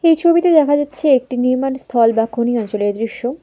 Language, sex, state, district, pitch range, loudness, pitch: Bengali, female, West Bengal, Alipurduar, 230-290 Hz, -16 LUFS, 255 Hz